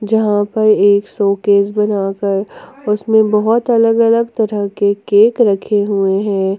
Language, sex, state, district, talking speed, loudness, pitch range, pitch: Hindi, female, Jharkhand, Ranchi, 145 wpm, -14 LUFS, 200-220 Hz, 210 Hz